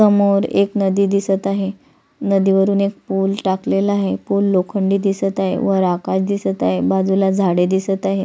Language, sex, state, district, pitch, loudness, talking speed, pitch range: Marathi, female, Maharashtra, Solapur, 195 Hz, -17 LUFS, 160 wpm, 190-200 Hz